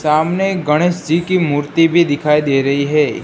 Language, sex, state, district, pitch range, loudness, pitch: Hindi, female, Gujarat, Gandhinagar, 145-175 Hz, -15 LUFS, 155 Hz